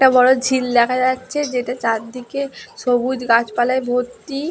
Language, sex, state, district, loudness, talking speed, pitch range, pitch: Bengali, female, West Bengal, Dakshin Dinajpur, -18 LUFS, 135 wpm, 245-260 Hz, 250 Hz